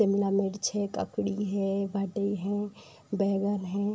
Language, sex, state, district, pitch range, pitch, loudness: Hindi, female, Uttar Pradesh, Budaun, 195-205 Hz, 200 Hz, -30 LUFS